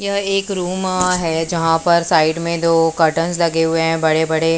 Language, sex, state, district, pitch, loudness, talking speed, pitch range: Hindi, female, Maharashtra, Mumbai Suburban, 165 Hz, -16 LUFS, 195 wpm, 165-180 Hz